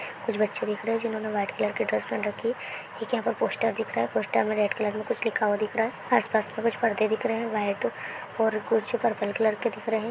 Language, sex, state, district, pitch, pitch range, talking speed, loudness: Hindi, female, Bihar, Saharsa, 220 Hz, 210-225 Hz, 280 wpm, -27 LUFS